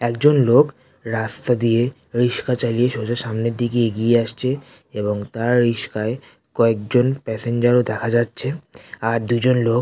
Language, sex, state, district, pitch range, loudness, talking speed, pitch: Bengali, male, West Bengal, North 24 Parganas, 115-125 Hz, -20 LUFS, 140 wpm, 120 Hz